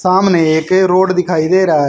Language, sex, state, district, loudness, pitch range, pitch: Hindi, male, Haryana, Rohtak, -12 LUFS, 160-185 Hz, 180 Hz